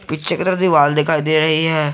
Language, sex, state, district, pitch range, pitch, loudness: Hindi, male, Jharkhand, Garhwa, 150-160 Hz, 155 Hz, -15 LUFS